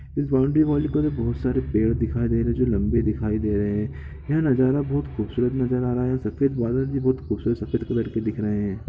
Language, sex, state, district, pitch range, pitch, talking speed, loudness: Hindi, male, Bihar, Gopalganj, 110-130 Hz, 120 Hz, 230 wpm, -23 LUFS